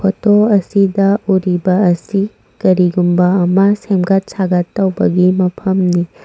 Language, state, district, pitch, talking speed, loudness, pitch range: Manipuri, Manipur, Imphal West, 190 Hz, 95 wpm, -13 LUFS, 180-195 Hz